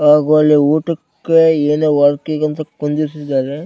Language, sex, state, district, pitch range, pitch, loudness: Kannada, male, Karnataka, Bellary, 145-155 Hz, 150 Hz, -14 LUFS